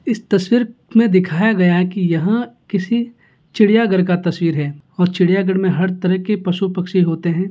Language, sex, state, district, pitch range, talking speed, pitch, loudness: Hindi, male, Bihar, Gaya, 175-215 Hz, 185 wpm, 185 Hz, -16 LUFS